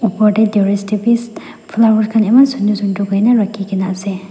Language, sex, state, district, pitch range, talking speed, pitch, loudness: Nagamese, female, Nagaland, Dimapur, 200-225 Hz, 180 wpm, 210 Hz, -14 LUFS